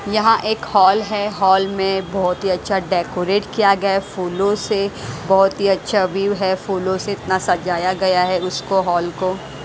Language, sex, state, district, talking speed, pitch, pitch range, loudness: Hindi, female, Haryana, Jhajjar, 180 wpm, 190 Hz, 185-200 Hz, -18 LUFS